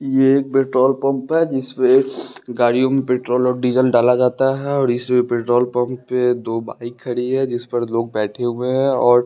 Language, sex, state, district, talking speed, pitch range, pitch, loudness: Hindi, male, Bihar, West Champaran, 200 wpm, 120-135 Hz, 125 Hz, -18 LUFS